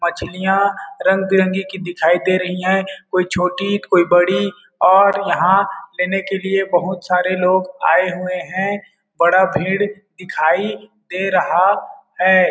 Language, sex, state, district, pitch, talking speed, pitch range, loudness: Hindi, male, Chhattisgarh, Balrampur, 185 Hz, 135 wpm, 180-195 Hz, -17 LUFS